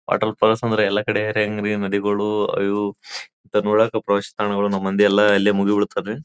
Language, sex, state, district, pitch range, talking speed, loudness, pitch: Kannada, male, Karnataka, Bijapur, 100-105 Hz, 155 wpm, -20 LUFS, 105 Hz